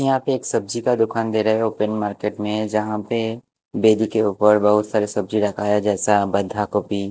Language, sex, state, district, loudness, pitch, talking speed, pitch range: Hindi, male, Bihar, West Champaran, -20 LUFS, 105 Hz, 210 wpm, 105-110 Hz